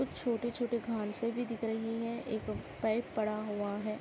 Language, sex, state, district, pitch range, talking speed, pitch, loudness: Hindi, female, Uttarakhand, Uttarkashi, 215-235 Hz, 210 wpm, 225 Hz, -36 LUFS